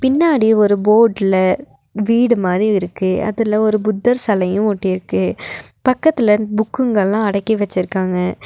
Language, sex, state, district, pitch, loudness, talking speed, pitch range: Tamil, female, Tamil Nadu, Nilgiris, 210 Hz, -16 LUFS, 105 wpm, 190-225 Hz